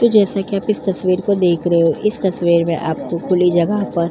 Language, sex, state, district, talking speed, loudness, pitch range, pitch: Hindi, female, Uttar Pradesh, Jyotiba Phule Nagar, 265 wpm, -17 LUFS, 170-200 Hz, 185 Hz